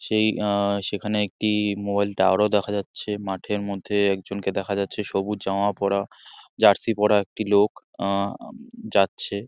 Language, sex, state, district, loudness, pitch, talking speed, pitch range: Bengali, male, West Bengal, Jalpaiguri, -23 LUFS, 100 Hz, 150 wpm, 100-105 Hz